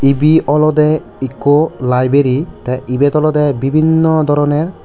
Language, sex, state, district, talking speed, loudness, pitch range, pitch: Chakma, male, Tripura, West Tripura, 110 wpm, -13 LUFS, 135-155 Hz, 145 Hz